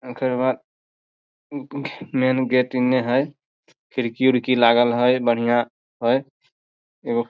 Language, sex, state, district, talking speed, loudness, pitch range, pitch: Maithili, male, Bihar, Samastipur, 105 wpm, -21 LUFS, 120-130 Hz, 125 Hz